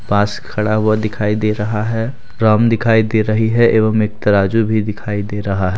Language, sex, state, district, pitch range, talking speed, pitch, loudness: Hindi, male, Jharkhand, Deoghar, 105-110 Hz, 195 wpm, 110 Hz, -16 LUFS